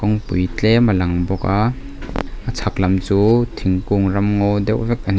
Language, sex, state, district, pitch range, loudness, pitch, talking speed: Mizo, male, Mizoram, Aizawl, 95-110 Hz, -18 LUFS, 100 Hz, 175 wpm